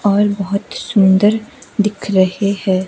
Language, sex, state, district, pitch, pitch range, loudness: Hindi, female, Himachal Pradesh, Shimla, 200 Hz, 195-210 Hz, -15 LUFS